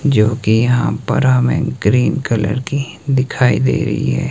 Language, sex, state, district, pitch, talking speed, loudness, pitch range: Hindi, male, Himachal Pradesh, Shimla, 125 Hz, 165 wpm, -15 LUFS, 105-140 Hz